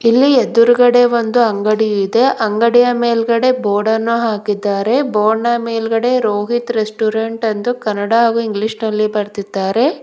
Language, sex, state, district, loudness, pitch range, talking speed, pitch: Kannada, female, Karnataka, Bidar, -14 LUFS, 215-240 Hz, 120 wpm, 225 Hz